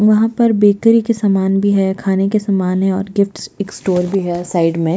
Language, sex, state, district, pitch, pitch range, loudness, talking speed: Hindi, female, Chhattisgarh, Jashpur, 195 Hz, 185-210 Hz, -15 LUFS, 230 wpm